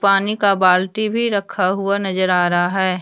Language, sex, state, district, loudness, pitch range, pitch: Hindi, female, Jharkhand, Deoghar, -17 LUFS, 185-200 Hz, 195 Hz